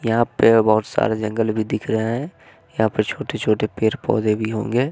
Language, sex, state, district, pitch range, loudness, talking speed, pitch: Hindi, male, Bihar, West Champaran, 110-120 Hz, -20 LUFS, 180 wpm, 110 Hz